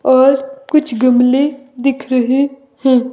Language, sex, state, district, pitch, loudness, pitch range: Hindi, female, Himachal Pradesh, Shimla, 270 Hz, -14 LUFS, 255-275 Hz